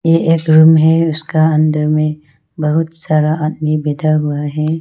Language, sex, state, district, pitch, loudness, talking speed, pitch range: Hindi, female, Arunachal Pradesh, Lower Dibang Valley, 155 Hz, -13 LUFS, 160 wpm, 150-160 Hz